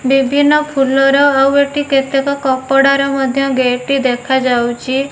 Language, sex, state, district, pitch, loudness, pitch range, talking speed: Odia, female, Odisha, Nuapada, 270 Hz, -13 LUFS, 265-275 Hz, 130 wpm